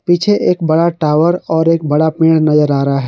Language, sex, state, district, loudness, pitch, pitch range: Hindi, male, Jharkhand, Garhwa, -12 LUFS, 160 Hz, 150-170 Hz